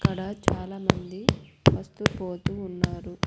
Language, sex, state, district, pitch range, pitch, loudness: Telugu, female, Andhra Pradesh, Annamaya, 175-190 Hz, 180 Hz, -27 LUFS